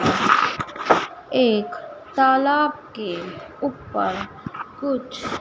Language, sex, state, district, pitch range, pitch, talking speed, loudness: Hindi, female, Madhya Pradesh, Dhar, 255-305 Hz, 270 Hz, 55 wpm, -22 LUFS